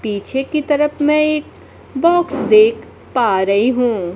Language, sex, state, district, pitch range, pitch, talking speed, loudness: Hindi, female, Bihar, Kaimur, 215-300 Hz, 270 Hz, 145 wpm, -15 LUFS